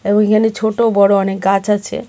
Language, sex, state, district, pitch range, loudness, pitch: Bengali, female, Tripura, West Tripura, 200-220 Hz, -14 LUFS, 205 Hz